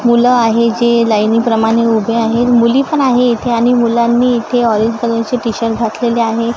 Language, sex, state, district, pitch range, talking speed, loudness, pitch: Marathi, female, Maharashtra, Gondia, 230-240 Hz, 165 wpm, -12 LUFS, 235 Hz